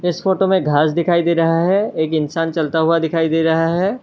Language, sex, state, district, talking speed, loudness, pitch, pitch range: Hindi, male, Assam, Kamrup Metropolitan, 240 wpm, -17 LUFS, 165 Hz, 160-175 Hz